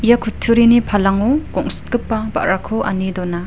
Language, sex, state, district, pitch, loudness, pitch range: Garo, female, Meghalaya, West Garo Hills, 220 Hz, -16 LUFS, 190-235 Hz